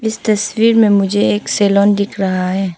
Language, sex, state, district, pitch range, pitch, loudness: Hindi, female, Arunachal Pradesh, Papum Pare, 190-220 Hz, 200 Hz, -14 LUFS